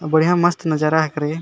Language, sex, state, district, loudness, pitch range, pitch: Sadri, male, Chhattisgarh, Jashpur, -18 LUFS, 155-165 Hz, 160 Hz